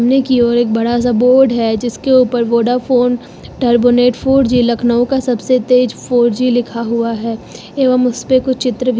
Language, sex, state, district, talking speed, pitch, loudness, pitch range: Hindi, female, Uttar Pradesh, Lucknow, 195 wpm, 245 Hz, -13 LUFS, 235-255 Hz